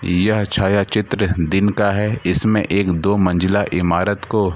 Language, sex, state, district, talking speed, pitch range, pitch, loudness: Hindi, male, Bihar, Gaya, 170 wpm, 90-105 Hz, 100 Hz, -17 LUFS